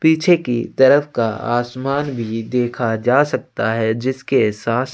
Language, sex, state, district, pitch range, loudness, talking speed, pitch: Hindi, male, Chhattisgarh, Sukma, 115-135 Hz, -18 LUFS, 145 wpm, 120 Hz